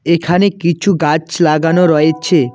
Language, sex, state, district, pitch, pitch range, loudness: Bengali, male, West Bengal, Cooch Behar, 170 Hz, 155-175 Hz, -13 LUFS